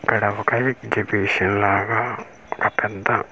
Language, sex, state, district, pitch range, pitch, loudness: Telugu, male, Andhra Pradesh, Manyam, 100-120 Hz, 110 Hz, -21 LUFS